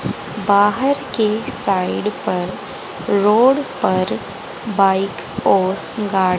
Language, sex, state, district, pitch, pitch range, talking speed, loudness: Hindi, female, Haryana, Jhajjar, 205 Hz, 190-220 Hz, 75 wpm, -18 LUFS